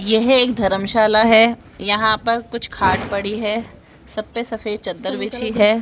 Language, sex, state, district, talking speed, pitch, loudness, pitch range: Hindi, female, Rajasthan, Jaipur, 165 wpm, 220 Hz, -17 LUFS, 210-230 Hz